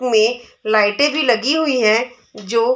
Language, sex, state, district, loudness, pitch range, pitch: Hindi, female, Chhattisgarh, Bilaspur, -16 LUFS, 220-255 Hz, 240 Hz